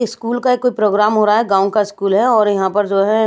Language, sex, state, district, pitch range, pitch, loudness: Hindi, female, Bihar, Patna, 200-225 Hz, 210 Hz, -15 LUFS